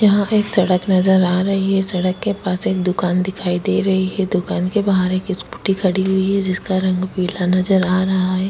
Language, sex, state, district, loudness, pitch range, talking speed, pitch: Hindi, female, Uttarakhand, Tehri Garhwal, -18 LUFS, 185-195 Hz, 225 wpm, 190 Hz